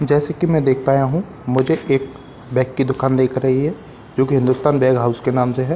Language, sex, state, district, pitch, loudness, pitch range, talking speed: Hindi, male, Bihar, Katihar, 135 Hz, -18 LUFS, 130-145 Hz, 240 wpm